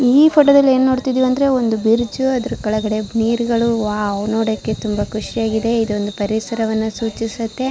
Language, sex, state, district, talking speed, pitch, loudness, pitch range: Kannada, female, Karnataka, Shimoga, 140 wpm, 225 Hz, -17 LUFS, 215-255 Hz